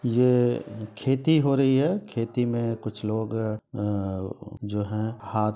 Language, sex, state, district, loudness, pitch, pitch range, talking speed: Hindi, male, Bihar, Sitamarhi, -26 LUFS, 110 Hz, 105-125 Hz, 150 wpm